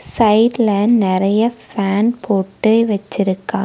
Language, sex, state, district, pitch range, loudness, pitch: Tamil, female, Tamil Nadu, Nilgiris, 195-230 Hz, -15 LUFS, 210 Hz